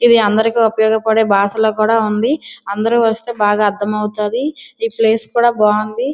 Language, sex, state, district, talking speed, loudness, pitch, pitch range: Telugu, female, Andhra Pradesh, Srikakulam, 135 wpm, -15 LUFS, 220 Hz, 210-235 Hz